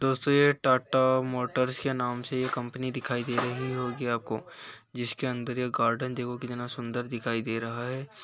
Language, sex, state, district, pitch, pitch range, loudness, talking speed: Hindi, male, Uttar Pradesh, Hamirpur, 125 Hz, 120-130 Hz, -29 LUFS, 180 wpm